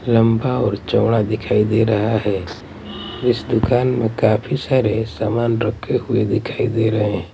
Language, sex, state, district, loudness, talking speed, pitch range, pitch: Hindi, male, Delhi, New Delhi, -18 LUFS, 155 wpm, 105-120 Hz, 110 Hz